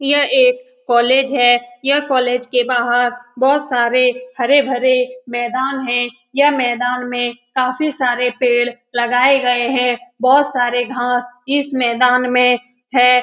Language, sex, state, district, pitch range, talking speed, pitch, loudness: Hindi, female, Bihar, Lakhisarai, 245-260 Hz, 130 wpm, 250 Hz, -15 LUFS